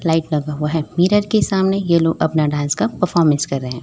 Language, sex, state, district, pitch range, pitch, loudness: Hindi, female, Chhattisgarh, Raipur, 150-180 Hz, 160 Hz, -17 LUFS